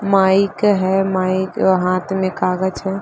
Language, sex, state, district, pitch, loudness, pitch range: Hindi, female, Chhattisgarh, Bastar, 190 Hz, -17 LUFS, 185-195 Hz